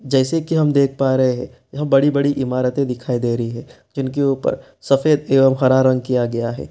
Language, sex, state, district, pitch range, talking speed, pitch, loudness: Hindi, male, Bihar, East Champaran, 125-140 Hz, 205 wpm, 135 Hz, -18 LUFS